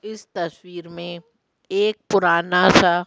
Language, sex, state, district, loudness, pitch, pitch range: Hindi, female, Madhya Pradesh, Bhopal, -19 LUFS, 180 Hz, 175-210 Hz